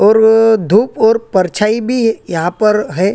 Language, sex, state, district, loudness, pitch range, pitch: Hindi, male, Chhattisgarh, Korba, -12 LUFS, 190-225 Hz, 215 Hz